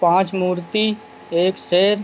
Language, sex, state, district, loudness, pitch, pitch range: Hindi, male, Jharkhand, Jamtara, -19 LUFS, 185 Hz, 175-205 Hz